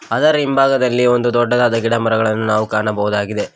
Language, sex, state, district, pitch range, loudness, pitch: Kannada, male, Karnataka, Koppal, 110-125 Hz, -15 LUFS, 115 Hz